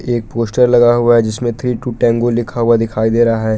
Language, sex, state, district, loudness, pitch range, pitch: Hindi, male, Jharkhand, Palamu, -14 LUFS, 115-120 Hz, 120 Hz